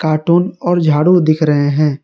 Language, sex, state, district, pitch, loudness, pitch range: Hindi, male, Jharkhand, Garhwa, 155 Hz, -13 LUFS, 150-175 Hz